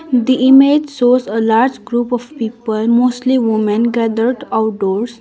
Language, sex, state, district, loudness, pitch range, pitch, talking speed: English, female, Sikkim, Gangtok, -14 LUFS, 225-255 Hz, 240 Hz, 140 wpm